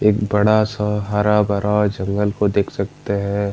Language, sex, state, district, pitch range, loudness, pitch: Hindi, male, Bihar, Gaya, 100-105 Hz, -19 LUFS, 105 Hz